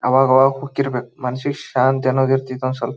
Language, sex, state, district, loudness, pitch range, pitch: Kannada, male, Karnataka, Bijapur, -18 LUFS, 130-135 Hz, 130 Hz